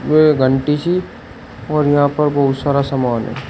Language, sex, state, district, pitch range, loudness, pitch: Hindi, male, Uttar Pradesh, Shamli, 135-150 Hz, -16 LUFS, 145 Hz